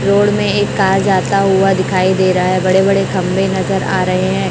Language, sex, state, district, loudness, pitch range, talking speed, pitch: Hindi, male, Chhattisgarh, Raipur, -13 LUFS, 185-195 Hz, 225 wpm, 190 Hz